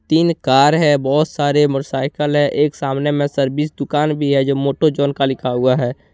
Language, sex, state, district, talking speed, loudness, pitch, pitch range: Hindi, male, Jharkhand, Deoghar, 205 wpm, -16 LUFS, 145 Hz, 135-150 Hz